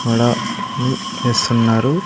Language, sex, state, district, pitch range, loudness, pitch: Telugu, male, Andhra Pradesh, Sri Satya Sai, 115-120 Hz, -17 LUFS, 120 Hz